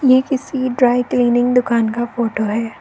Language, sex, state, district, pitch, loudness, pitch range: Hindi, female, Arunachal Pradesh, Lower Dibang Valley, 245 Hz, -17 LUFS, 230-255 Hz